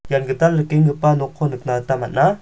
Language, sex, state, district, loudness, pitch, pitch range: Garo, male, Meghalaya, South Garo Hills, -18 LUFS, 145 Hz, 130-155 Hz